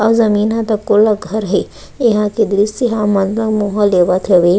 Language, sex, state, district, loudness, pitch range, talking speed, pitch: Chhattisgarhi, female, Chhattisgarh, Raigarh, -14 LUFS, 200-220 Hz, 185 wpm, 210 Hz